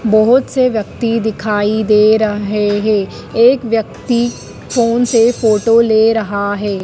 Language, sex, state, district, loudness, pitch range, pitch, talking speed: Hindi, female, Madhya Pradesh, Dhar, -13 LUFS, 210-235 Hz, 220 Hz, 130 wpm